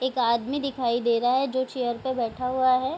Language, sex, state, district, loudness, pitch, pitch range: Hindi, female, Bihar, Darbhanga, -25 LUFS, 255 Hz, 240-260 Hz